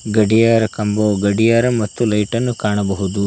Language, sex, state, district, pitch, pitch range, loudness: Kannada, male, Karnataka, Koppal, 105 Hz, 105-115 Hz, -16 LUFS